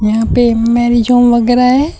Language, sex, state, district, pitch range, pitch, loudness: Hindi, female, Uttar Pradesh, Shamli, 235-245 Hz, 240 Hz, -10 LUFS